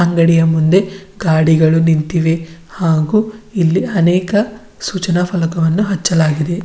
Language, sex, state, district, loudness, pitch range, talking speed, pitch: Kannada, female, Karnataka, Bidar, -14 LUFS, 165-195 Hz, 90 wpm, 170 Hz